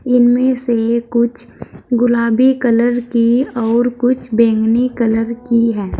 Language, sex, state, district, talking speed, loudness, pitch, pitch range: Hindi, female, Uttar Pradesh, Saharanpur, 120 wpm, -14 LUFS, 240 Hz, 230-245 Hz